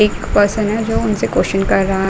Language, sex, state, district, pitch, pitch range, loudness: Hindi, female, Uttar Pradesh, Muzaffarnagar, 205 Hz, 195-215 Hz, -16 LUFS